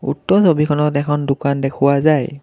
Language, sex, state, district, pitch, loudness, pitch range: Assamese, male, Assam, Kamrup Metropolitan, 145 Hz, -16 LUFS, 140-150 Hz